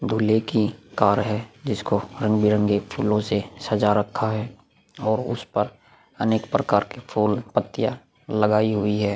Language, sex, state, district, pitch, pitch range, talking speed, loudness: Hindi, male, Chhattisgarh, Korba, 105 Hz, 105-110 Hz, 145 wpm, -23 LUFS